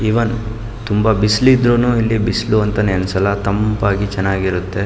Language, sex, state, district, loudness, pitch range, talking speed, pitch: Kannada, male, Karnataka, Mysore, -16 LUFS, 100-115 Hz, 150 wpm, 105 Hz